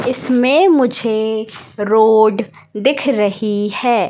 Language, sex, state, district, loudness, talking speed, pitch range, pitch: Hindi, female, Madhya Pradesh, Katni, -14 LUFS, 85 wpm, 210-250 Hz, 220 Hz